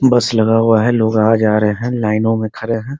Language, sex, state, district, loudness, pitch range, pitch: Hindi, male, Bihar, Muzaffarpur, -14 LUFS, 110-115 Hz, 110 Hz